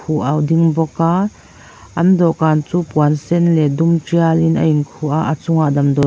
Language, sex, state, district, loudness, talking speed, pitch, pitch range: Mizo, female, Mizoram, Aizawl, -15 LUFS, 180 wpm, 160 Hz, 150-165 Hz